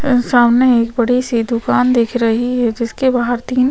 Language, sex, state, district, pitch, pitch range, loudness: Hindi, female, Chhattisgarh, Sukma, 245 Hz, 235-250 Hz, -14 LUFS